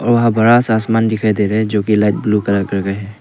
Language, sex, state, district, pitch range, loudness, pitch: Hindi, male, Arunachal Pradesh, Papum Pare, 100-110 Hz, -14 LUFS, 110 Hz